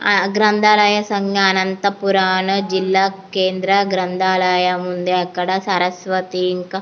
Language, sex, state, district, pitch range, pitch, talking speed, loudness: Telugu, female, Andhra Pradesh, Anantapur, 185-200 Hz, 190 Hz, 105 wpm, -17 LUFS